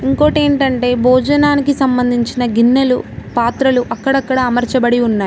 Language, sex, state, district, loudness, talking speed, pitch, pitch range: Telugu, female, Telangana, Mahabubabad, -14 LUFS, 105 wpm, 255 Hz, 245-270 Hz